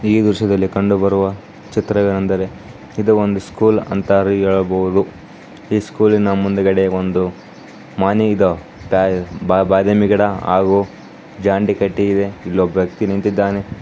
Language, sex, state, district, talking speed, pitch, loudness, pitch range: Kannada, male, Karnataka, Bijapur, 110 wpm, 100 Hz, -16 LUFS, 95-105 Hz